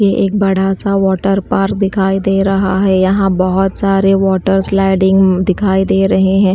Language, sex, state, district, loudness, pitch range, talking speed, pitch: Hindi, female, Bihar, Kaimur, -12 LUFS, 190-195 Hz, 165 wpm, 195 Hz